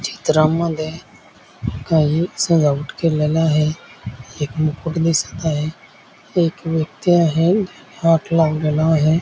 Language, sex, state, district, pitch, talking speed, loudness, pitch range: Marathi, male, Maharashtra, Dhule, 160 Hz, 95 wpm, -18 LUFS, 150-165 Hz